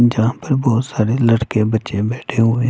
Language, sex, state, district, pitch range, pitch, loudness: Hindi, male, Punjab, Fazilka, 110-125 Hz, 115 Hz, -17 LUFS